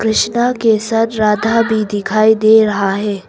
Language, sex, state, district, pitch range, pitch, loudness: Hindi, female, Arunachal Pradesh, Papum Pare, 210-225 Hz, 220 Hz, -13 LUFS